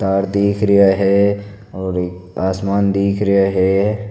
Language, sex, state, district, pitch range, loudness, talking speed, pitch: Marwari, male, Rajasthan, Nagaur, 95-100 Hz, -16 LUFS, 130 wpm, 100 Hz